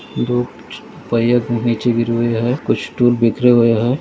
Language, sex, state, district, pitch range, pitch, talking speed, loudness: Hindi, male, Maharashtra, Dhule, 115-120 Hz, 120 Hz, 165 wpm, -16 LUFS